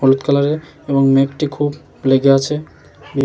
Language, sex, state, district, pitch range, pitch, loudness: Bengali, male, West Bengal, Jalpaiguri, 135-145 Hz, 140 Hz, -16 LUFS